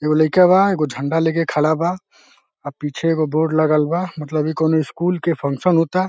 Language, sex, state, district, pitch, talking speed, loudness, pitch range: Hindi, male, Uttar Pradesh, Deoria, 160 Hz, 215 wpm, -18 LUFS, 150-170 Hz